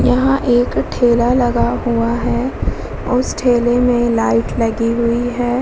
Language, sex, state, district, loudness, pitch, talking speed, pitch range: Hindi, female, Uttar Pradesh, Muzaffarnagar, -16 LUFS, 240 Hz, 150 wpm, 235-245 Hz